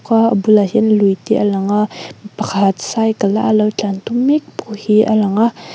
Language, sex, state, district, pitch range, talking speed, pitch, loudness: Mizo, female, Mizoram, Aizawl, 205-225 Hz, 210 wpm, 215 Hz, -15 LUFS